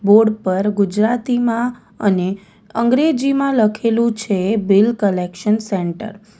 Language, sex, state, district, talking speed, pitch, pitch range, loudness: Gujarati, female, Gujarat, Valsad, 105 wpm, 215 Hz, 200-235 Hz, -17 LUFS